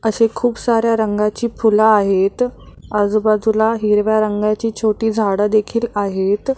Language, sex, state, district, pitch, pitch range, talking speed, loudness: Marathi, female, Maharashtra, Mumbai Suburban, 215 Hz, 210-225 Hz, 120 wpm, -16 LUFS